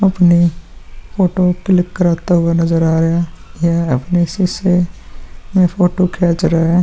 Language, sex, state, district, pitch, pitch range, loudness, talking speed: Hindi, male, Bihar, Vaishali, 175 Hz, 170-180 Hz, -14 LUFS, 165 wpm